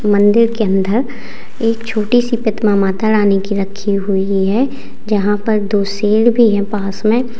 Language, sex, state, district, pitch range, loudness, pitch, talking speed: Hindi, female, Uttar Pradesh, Lalitpur, 200-225 Hz, -15 LUFS, 210 Hz, 170 wpm